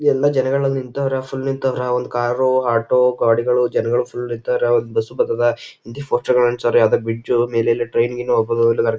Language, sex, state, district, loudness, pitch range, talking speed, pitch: Kannada, male, Karnataka, Chamarajanagar, -18 LUFS, 120-145 Hz, 175 wpm, 125 Hz